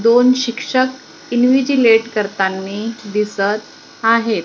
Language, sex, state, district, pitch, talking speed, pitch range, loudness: Marathi, female, Maharashtra, Gondia, 230 Hz, 80 wpm, 210-250 Hz, -16 LUFS